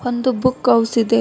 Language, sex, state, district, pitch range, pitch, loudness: Kannada, female, Karnataka, Bangalore, 230-255 Hz, 240 Hz, -17 LUFS